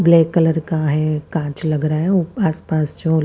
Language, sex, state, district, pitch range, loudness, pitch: Hindi, female, Punjab, Fazilka, 155-170 Hz, -18 LUFS, 160 Hz